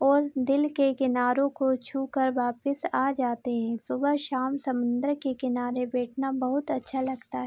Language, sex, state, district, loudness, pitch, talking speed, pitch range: Hindi, female, Bihar, Araria, -28 LUFS, 265 Hz, 160 wpm, 250-275 Hz